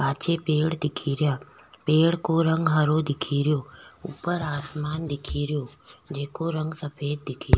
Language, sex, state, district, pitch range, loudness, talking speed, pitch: Rajasthani, female, Rajasthan, Nagaur, 145-160 Hz, -26 LUFS, 120 wpm, 150 Hz